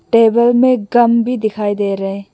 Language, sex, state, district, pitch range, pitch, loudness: Hindi, female, Mizoram, Aizawl, 205-240 Hz, 230 Hz, -14 LUFS